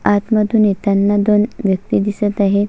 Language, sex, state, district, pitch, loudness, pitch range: Marathi, female, Maharashtra, Solapur, 205 Hz, -15 LUFS, 200-210 Hz